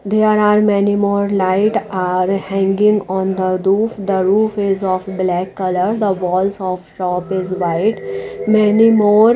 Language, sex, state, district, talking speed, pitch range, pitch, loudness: English, female, Odisha, Nuapada, 155 wpm, 185-210 Hz, 195 Hz, -16 LUFS